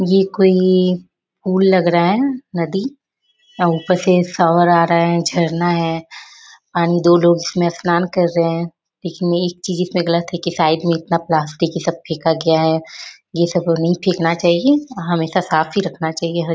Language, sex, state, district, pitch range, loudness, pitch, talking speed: Hindi, female, Bihar, Bhagalpur, 170-180 Hz, -16 LUFS, 170 Hz, 190 wpm